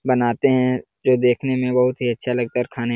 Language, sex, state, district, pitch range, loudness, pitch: Hindi, male, Uttar Pradesh, Jalaun, 120-130 Hz, -20 LUFS, 125 Hz